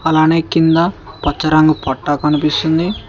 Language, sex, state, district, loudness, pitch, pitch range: Telugu, male, Telangana, Mahabubabad, -14 LUFS, 155 Hz, 150-165 Hz